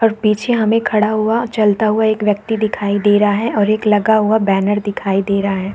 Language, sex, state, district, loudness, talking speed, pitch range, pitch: Hindi, female, Bihar, Saharsa, -15 LUFS, 230 wpm, 205-220 Hz, 210 Hz